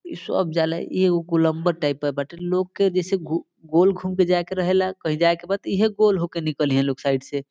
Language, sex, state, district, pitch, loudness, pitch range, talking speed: Bhojpuri, male, Bihar, Saran, 170 Hz, -22 LUFS, 155-185 Hz, 255 wpm